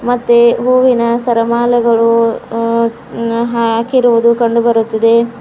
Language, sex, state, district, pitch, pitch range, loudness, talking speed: Kannada, female, Karnataka, Bidar, 235 Hz, 230-240 Hz, -12 LUFS, 75 wpm